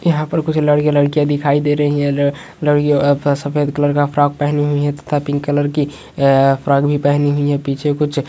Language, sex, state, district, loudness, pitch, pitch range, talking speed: Hindi, male, Bihar, Saran, -16 LUFS, 145 Hz, 145-150 Hz, 230 wpm